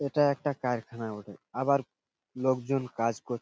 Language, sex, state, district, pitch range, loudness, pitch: Bengali, male, West Bengal, Purulia, 115-140 Hz, -30 LUFS, 130 Hz